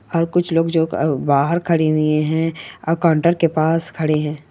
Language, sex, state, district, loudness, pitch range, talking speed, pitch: Hindi, male, Chhattisgarh, Bilaspur, -18 LUFS, 155-165 Hz, 200 wpm, 165 Hz